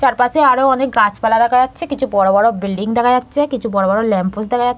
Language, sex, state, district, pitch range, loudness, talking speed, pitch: Bengali, female, West Bengal, Purulia, 210-260 Hz, -15 LUFS, 225 wpm, 245 Hz